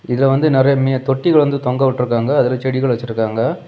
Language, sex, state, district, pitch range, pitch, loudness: Tamil, male, Tamil Nadu, Kanyakumari, 125-135 Hz, 130 Hz, -16 LUFS